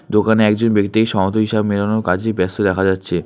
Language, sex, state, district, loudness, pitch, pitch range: Bengali, male, West Bengal, Alipurduar, -16 LUFS, 105 Hz, 95-110 Hz